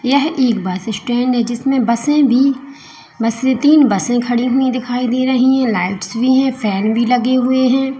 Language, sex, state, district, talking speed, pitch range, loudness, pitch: Hindi, female, Uttar Pradesh, Lalitpur, 195 wpm, 235-265 Hz, -15 LUFS, 250 Hz